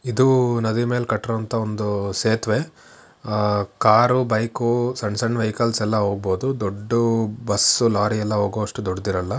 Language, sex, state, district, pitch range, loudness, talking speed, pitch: Kannada, male, Karnataka, Shimoga, 105-120 Hz, -21 LUFS, 140 wpm, 110 Hz